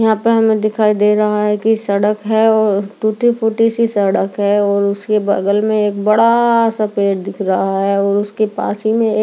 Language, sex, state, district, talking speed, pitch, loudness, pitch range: Hindi, female, Delhi, New Delhi, 215 wpm, 210 Hz, -14 LUFS, 200-220 Hz